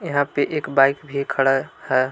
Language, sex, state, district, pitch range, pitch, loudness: Hindi, male, Jharkhand, Palamu, 135-145 Hz, 140 Hz, -20 LUFS